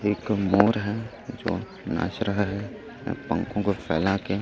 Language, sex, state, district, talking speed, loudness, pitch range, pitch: Hindi, male, Chhattisgarh, Raipur, 165 wpm, -26 LUFS, 95-105 Hz, 100 Hz